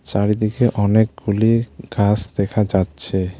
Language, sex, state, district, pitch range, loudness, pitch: Bengali, male, West Bengal, Alipurduar, 100-110 Hz, -18 LUFS, 105 Hz